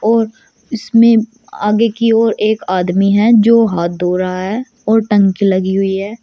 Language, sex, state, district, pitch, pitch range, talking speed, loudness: Hindi, female, Uttar Pradesh, Shamli, 215 Hz, 195-230 Hz, 175 wpm, -13 LUFS